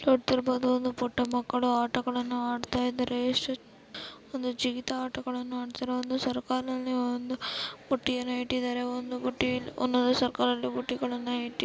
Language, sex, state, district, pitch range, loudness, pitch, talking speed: Kannada, female, Karnataka, Dharwad, 245-255 Hz, -30 LUFS, 250 Hz, 130 wpm